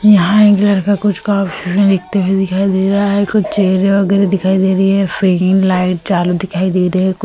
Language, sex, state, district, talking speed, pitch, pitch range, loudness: Hindi, female, Goa, North and South Goa, 215 wpm, 195 Hz, 185-200 Hz, -13 LUFS